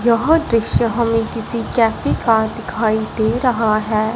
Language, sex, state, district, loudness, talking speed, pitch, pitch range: Hindi, female, Punjab, Fazilka, -17 LUFS, 145 wpm, 225 Hz, 220-235 Hz